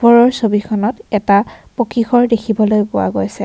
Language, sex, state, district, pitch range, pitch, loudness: Assamese, female, Assam, Kamrup Metropolitan, 210-235 Hz, 220 Hz, -14 LUFS